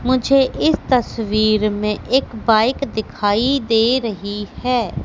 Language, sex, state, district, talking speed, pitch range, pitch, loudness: Hindi, female, Madhya Pradesh, Katni, 120 wpm, 215-255 Hz, 225 Hz, -18 LUFS